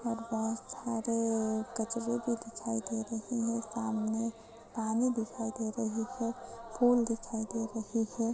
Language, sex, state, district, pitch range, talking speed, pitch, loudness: Hindi, female, Uttar Pradesh, Jyotiba Phule Nagar, 225-230 Hz, 145 wpm, 230 Hz, -34 LUFS